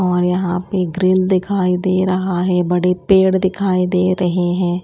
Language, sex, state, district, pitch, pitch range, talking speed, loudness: Hindi, female, Odisha, Malkangiri, 185 Hz, 180-185 Hz, 175 wpm, -16 LUFS